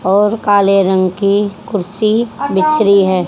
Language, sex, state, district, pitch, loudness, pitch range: Hindi, female, Haryana, Jhajjar, 200 Hz, -13 LUFS, 190-210 Hz